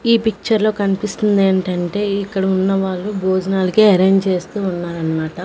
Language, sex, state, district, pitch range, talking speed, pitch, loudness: Telugu, female, Andhra Pradesh, Manyam, 185-205 Hz, 120 wpm, 195 Hz, -17 LUFS